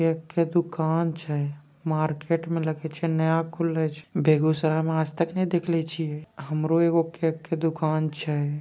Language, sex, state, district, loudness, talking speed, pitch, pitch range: Angika, female, Bihar, Begusarai, -26 LUFS, 165 wpm, 160 Hz, 155-165 Hz